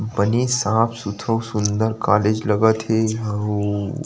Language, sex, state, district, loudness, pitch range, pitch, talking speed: Chhattisgarhi, male, Chhattisgarh, Rajnandgaon, -20 LUFS, 105-110 Hz, 110 Hz, 120 wpm